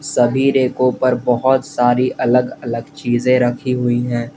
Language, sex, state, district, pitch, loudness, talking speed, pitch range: Hindi, male, Jharkhand, Garhwa, 125 Hz, -16 LUFS, 135 wpm, 120-130 Hz